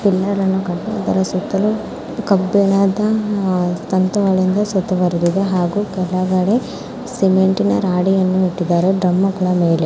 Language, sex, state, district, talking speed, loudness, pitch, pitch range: Kannada, female, Karnataka, Mysore, 110 wpm, -17 LUFS, 190 Hz, 185-200 Hz